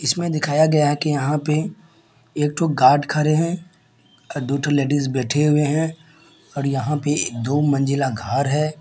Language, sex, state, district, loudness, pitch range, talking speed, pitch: Maithili, male, Bihar, Supaul, -20 LUFS, 140-155 Hz, 175 wpm, 150 Hz